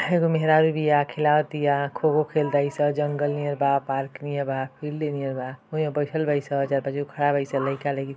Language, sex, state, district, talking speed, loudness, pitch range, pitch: Bhojpuri, female, Uttar Pradesh, Ghazipur, 205 wpm, -24 LUFS, 140-150 Hz, 145 Hz